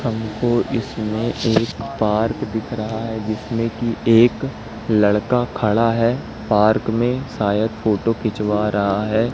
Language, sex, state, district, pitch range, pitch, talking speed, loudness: Hindi, male, Madhya Pradesh, Katni, 110-115 Hz, 110 Hz, 130 wpm, -19 LUFS